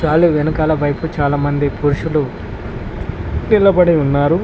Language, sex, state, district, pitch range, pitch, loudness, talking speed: Telugu, male, Telangana, Mahabubabad, 145-165 Hz, 150 Hz, -16 LUFS, 110 wpm